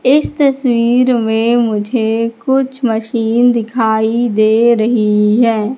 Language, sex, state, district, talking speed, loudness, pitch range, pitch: Hindi, female, Madhya Pradesh, Katni, 105 wpm, -13 LUFS, 220-245 Hz, 230 Hz